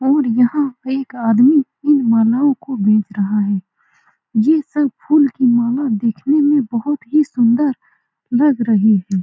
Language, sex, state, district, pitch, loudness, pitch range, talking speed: Hindi, female, Bihar, Saran, 255 Hz, -16 LUFS, 230-290 Hz, 150 wpm